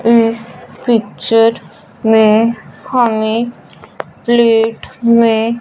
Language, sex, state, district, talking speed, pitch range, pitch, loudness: Hindi, male, Punjab, Fazilka, 65 wpm, 225-235 Hz, 230 Hz, -13 LUFS